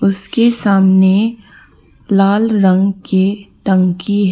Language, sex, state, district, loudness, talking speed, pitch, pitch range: Hindi, female, Arunachal Pradesh, Papum Pare, -13 LUFS, 95 wpm, 195 Hz, 190-210 Hz